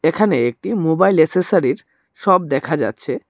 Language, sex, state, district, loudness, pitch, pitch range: Bengali, male, Tripura, Dhalai, -17 LUFS, 165 Hz, 150-190 Hz